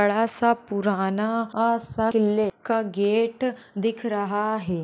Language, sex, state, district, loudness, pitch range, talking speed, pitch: Hindi, female, Maharashtra, Solapur, -24 LUFS, 205-230 Hz, 125 wpm, 220 Hz